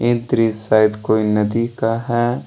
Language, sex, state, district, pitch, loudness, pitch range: Hindi, male, Jharkhand, Deoghar, 115 Hz, -17 LUFS, 110-120 Hz